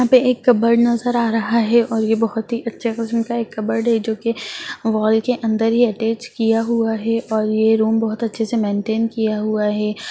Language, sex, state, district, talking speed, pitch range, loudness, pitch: Hindi, female, Bihar, Jahanabad, 225 wpm, 220-230 Hz, -18 LUFS, 225 Hz